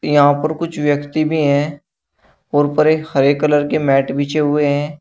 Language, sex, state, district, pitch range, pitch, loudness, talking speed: Hindi, male, Uttar Pradesh, Shamli, 145-155 Hz, 145 Hz, -16 LUFS, 190 wpm